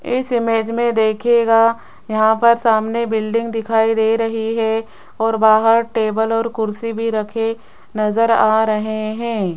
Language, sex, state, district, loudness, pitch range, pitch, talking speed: Hindi, female, Rajasthan, Jaipur, -17 LUFS, 220-230 Hz, 225 Hz, 145 wpm